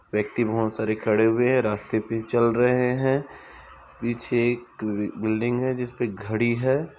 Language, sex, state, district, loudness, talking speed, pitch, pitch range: Hindi, male, Chhattisgarh, Bilaspur, -24 LUFS, 165 wpm, 120 Hz, 110-125 Hz